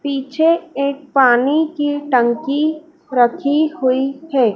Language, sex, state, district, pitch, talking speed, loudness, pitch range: Hindi, female, Madhya Pradesh, Dhar, 280 Hz, 105 wpm, -17 LUFS, 260-305 Hz